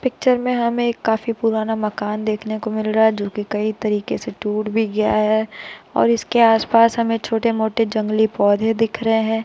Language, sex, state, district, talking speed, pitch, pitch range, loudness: Hindi, female, Uttar Pradesh, Jalaun, 195 wpm, 220 Hz, 215-230 Hz, -19 LUFS